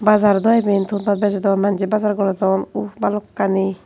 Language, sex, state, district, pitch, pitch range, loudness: Chakma, female, Tripura, Unakoti, 200 Hz, 195-210 Hz, -18 LUFS